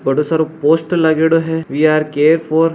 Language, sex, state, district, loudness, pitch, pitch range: Hindi, female, Rajasthan, Nagaur, -14 LUFS, 160 Hz, 155-160 Hz